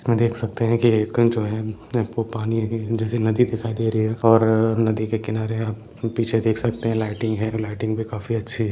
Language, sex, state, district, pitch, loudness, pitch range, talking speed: Hindi, male, Uttar Pradesh, Deoria, 110 Hz, -22 LUFS, 110-115 Hz, 165 wpm